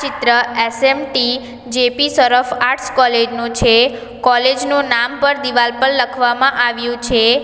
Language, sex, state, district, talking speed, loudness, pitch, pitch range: Gujarati, female, Gujarat, Valsad, 135 wpm, -14 LUFS, 245 Hz, 240-265 Hz